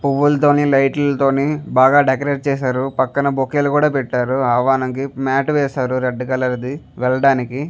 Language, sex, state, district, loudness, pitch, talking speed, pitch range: Telugu, male, Andhra Pradesh, Chittoor, -17 LUFS, 135 Hz, 130 wpm, 130-140 Hz